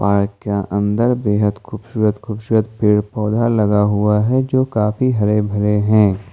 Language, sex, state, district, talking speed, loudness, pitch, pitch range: Hindi, male, Jharkhand, Ranchi, 150 wpm, -17 LUFS, 105 Hz, 105-110 Hz